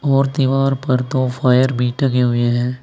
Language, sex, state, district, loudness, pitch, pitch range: Hindi, male, Uttar Pradesh, Saharanpur, -17 LUFS, 130 Hz, 125-135 Hz